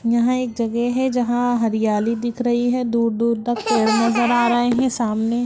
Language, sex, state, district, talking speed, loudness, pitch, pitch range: Hindi, female, Bihar, Lakhisarai, 200 wpm, -19 LUFS, 235 Hz, 230-245 Hz